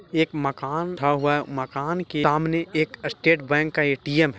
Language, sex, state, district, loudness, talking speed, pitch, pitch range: Hindi, male, Bihar, Jahanabad, -23 LUFS, 180 wpm, 155 Hz, 145-160 Hz